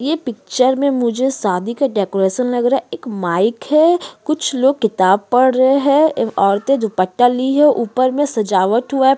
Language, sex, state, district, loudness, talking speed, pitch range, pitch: Hindi, female, Uttarakhand, Tehri Garhwal, -15 LUFS, 205 wpm, 215-275 Hz, 255 Hz